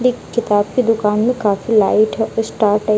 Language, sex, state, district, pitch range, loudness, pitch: Hindi, female, Bihar, Kaimur, 210-235 Hz, -16 LUFS, 215 Hz